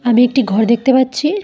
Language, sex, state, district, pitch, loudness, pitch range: Bengali, female, Tripura, Dhalai, 255 Hz, -13 LUFS, 235-265 Hz